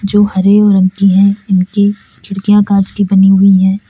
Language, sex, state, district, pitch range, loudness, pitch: Hindi, female, Uttar Pradesh, Lalitpur, 195-205 Hz, -10 LUFS, 195 Hz